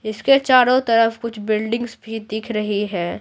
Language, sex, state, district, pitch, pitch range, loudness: Hindi, female, Bihar, Patna, 225 Hz, 215-235 Hz, -19 LUFS